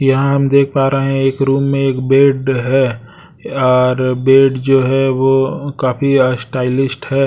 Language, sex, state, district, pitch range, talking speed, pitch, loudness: Hindi, male, Odisha, Sambalpur, 130-135 Hz, 165 wpm, 135 Hz, -13 LUFS